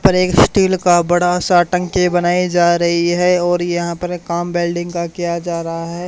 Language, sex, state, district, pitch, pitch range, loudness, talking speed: Hindi, male, Haryana, Charkhi Dadri, 175 Hz, 170-180 Hz, -15 LUFS, 205 wpm